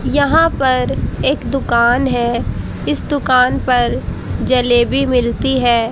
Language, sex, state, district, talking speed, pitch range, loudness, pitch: Hindi, female, Haryana, Charkhi Dadri, 110 wpm, 240-265 Hz, -15 LUFS, 250 Hz